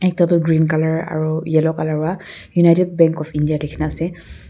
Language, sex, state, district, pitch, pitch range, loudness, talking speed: Nagamese, female, Nagaland, Kohima, 160 Hz, 155-170 Hz, -18 LUFS, 185 wpm